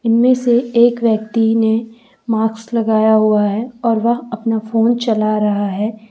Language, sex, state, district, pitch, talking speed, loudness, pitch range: Hindi, female, Jharkhand, Deoghar, 225 Hz, 155 wpm, -15 LUFS, 220-235 Hz